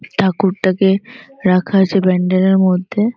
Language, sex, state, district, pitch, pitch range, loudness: Bengali, female, West Bengal, North 24 Parganas, 190 Hz, 185-200 Hz, -15 LUFS